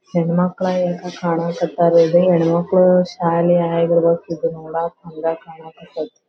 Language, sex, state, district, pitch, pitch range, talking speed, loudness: Kannada, female, Karnataka, Belgaum, 170 Hz, 165-175 Hz, 145 wpm, -17 LUFS